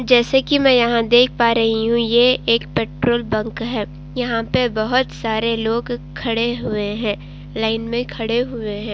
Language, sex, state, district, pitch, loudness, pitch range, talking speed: Hindi, female, Uttar Pradesh, Jalaun, 230 Hz, -18 LUFS, 220-240 Hz, 175 wpm